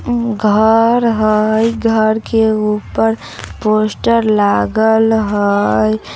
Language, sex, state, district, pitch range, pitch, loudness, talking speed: Bajjika, female, Bihar, Vaishali, 210-225 Hz, 220 Hz, -13 LUFS, 90 wpm